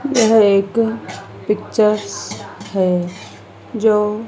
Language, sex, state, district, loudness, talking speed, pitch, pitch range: Hindi, female, Madhya Pradesh, Dhar, -17 LUFS, 70 wpm, 210 Hz, 185-220 Hz